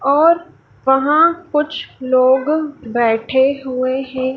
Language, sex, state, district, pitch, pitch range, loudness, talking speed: Hindi, female, Madhya Pradesh, Dhar, 270 Hz, 255-310 Hz, -16 LUFS, 95 wpm